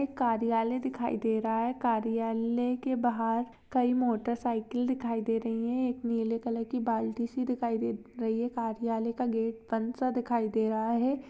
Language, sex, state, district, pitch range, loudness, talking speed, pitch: Hindi, female, Maharashtra, Chandrapur, 225-245 Hz, -31 LUFS, 175 wpm, 235 Hz